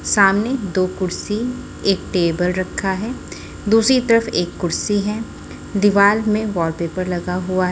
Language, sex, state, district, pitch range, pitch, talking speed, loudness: Hindi, female, Chhattisgarh, Raipur, 185-215 Hz, 200 Hz, 130 wpm, -19 LUFS